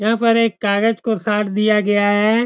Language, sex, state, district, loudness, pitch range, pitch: Hindi, male, Bihar, Saran, -17 LUFS, 205-225 Hz, 215 Hz